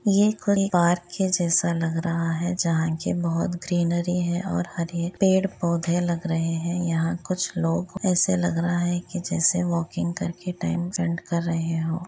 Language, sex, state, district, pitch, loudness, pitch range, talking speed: Hindi, female, Jharkhand, Jamtara, 175 Hz, -24 LUFS, 170-180 Hz, 185 wpm